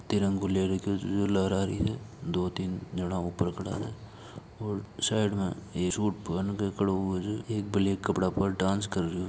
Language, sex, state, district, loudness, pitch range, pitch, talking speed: Marwari, male, Rajasthan, Nagaur, -30 LUFS, 95-105 Hz, 100 Hz, 200 wpm